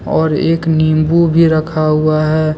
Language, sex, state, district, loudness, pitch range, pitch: Hindi, male, Jharkhand, Deoghar, -13 LUFS, 155-165 Hz, 155 Hz